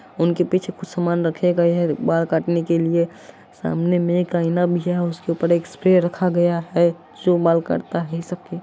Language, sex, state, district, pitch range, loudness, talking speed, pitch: Maithili, female, Bihar, Supaul, 170-180 Hz, -20 LUFS, 200 wpm, 175 Hz